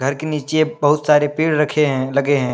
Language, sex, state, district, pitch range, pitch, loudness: Hindi, male, Jharkhand, Deoghar, 140-155 Hz, 145 Hz, -17 LUFS